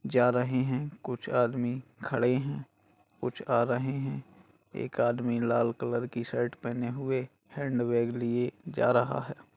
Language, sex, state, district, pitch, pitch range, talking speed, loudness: Hindi, male, Bihar, Bhagalpur, 120 Hz, 120-130 Hz, 155 wpm, -30 LUFS